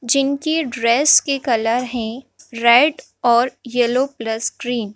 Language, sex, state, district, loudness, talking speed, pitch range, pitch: Hindi, female, Madhya Pradesh, Bhopal, -17 LUFS, 135 wpm, 235-275 Hz, 245 Hz